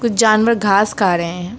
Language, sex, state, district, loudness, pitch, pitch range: Hindi, female, West Bengal, Alipurduar, -15 LUFS, 210 Hz, 180-225 Hz